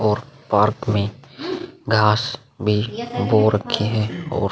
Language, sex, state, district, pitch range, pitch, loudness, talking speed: Hindi, male, Uttar Pradesh, Muzaffarnagar, 105-130 Hz, 110 Hz, -21 LUFS, 135 wpm